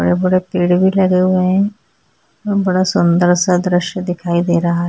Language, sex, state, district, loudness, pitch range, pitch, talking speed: Hindi, female, Uttarakhand, Tehri Garhwal, -15 LUFS, 175-185 Hz, 180 Hz, 195 wpm